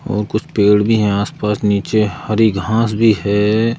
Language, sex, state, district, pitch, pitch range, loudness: Hindi, male, Madhya Pradesh, Bhopal, 105 Hz, 105-110 Hz, -15 LUFS